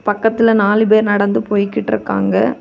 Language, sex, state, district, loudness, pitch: Tamil, female, Tamil Nadu, Kanyakumari, -14 LUFS, 205 Hz